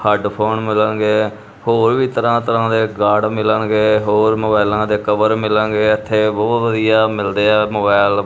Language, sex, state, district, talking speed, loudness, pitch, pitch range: Punjabi, male, Punjab, Kapurthala, 150 wpm, -15 LUFS, 110 Hz, 105-110 Hz